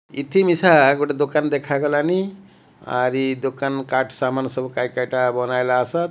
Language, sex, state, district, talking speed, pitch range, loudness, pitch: Odia, male, Odisha, Malkangiri, 130 wpm, 130-145 Hz, -20 LUFS, 135 Hz